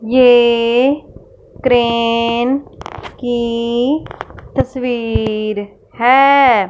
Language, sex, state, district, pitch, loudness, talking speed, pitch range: Hindi, female, Punjab, Fazilka, 240 Hz, -14 LUFS, 45 wpm, 230-255 Hz